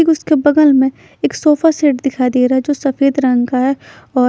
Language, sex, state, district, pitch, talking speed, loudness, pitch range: Hindi, female, Chandigarh, Chandigarh, 275 Hz, 210 wpm, -14 LUFS, 260-295 Hz